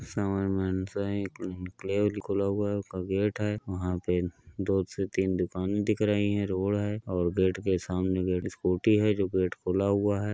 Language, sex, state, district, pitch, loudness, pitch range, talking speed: Hindi, male, Uttar Pradesh, Hamirpur, 95 Hz, -29 LUFS, 90-100 Hz, 185 wpm